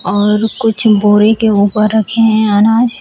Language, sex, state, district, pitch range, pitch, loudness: Hindi, female, Uttar Pradesh, Shamli, 210-225 Hz, 215 Hz, -11 LUFS